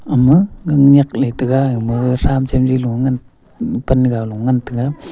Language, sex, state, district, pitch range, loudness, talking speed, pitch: Wancho, male, Arunachal Pradesh, Longding, 125-140 Hz, -15 LUFS, 175 wpm, 130 Hz